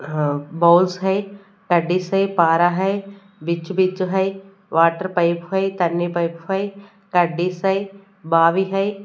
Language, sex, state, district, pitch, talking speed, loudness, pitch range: Hindi, female, Punjab, Kapurthala, 185 Hz, 100 wpm, -19 LUFS, 170-195 Hz